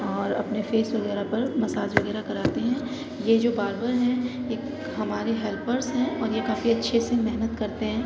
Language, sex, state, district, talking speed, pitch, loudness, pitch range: Hindi, female, Uttar Pradesh, Jalaun, 185 wpm, 235 Hz, -26 LUFS, 225-255 Hz